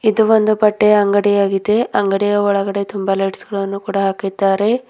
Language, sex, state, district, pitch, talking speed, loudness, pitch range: Kannada, female, Karnataka, Bidar, 200 Hz, 135 wpm, -16 LUFS, 195-210 Hz